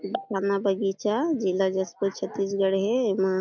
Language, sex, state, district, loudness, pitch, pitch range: Chhattisgarhi, female, Chhattisgarh, Jashpur, -26 LUFS, 195 Hz, 190-205 Hz